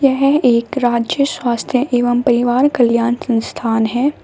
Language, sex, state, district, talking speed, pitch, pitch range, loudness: Hindi, female, Uttar Pradesh, Shamli, 125 wpm, 245 Hz, 235-270 Hz, -15 LUFS